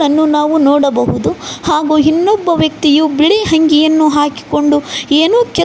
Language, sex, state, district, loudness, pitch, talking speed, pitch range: Kannada, female, Karnataka, Koppal, -11 LUFS, 305 Hz, 105 wpm, 295-320 Hz